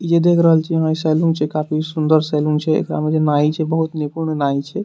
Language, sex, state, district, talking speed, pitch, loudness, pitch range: Maithili, male, Bihar, Madhepura, 260 wpm, 155 Hz, -17 LUFS, 150-160 Hz